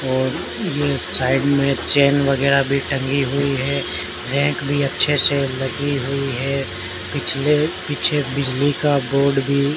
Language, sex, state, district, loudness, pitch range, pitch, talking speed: Hindi, male, Rajasthan, Bikaner, -19 LUFS, 135-145 Hz, 140 Hz, 145 wpm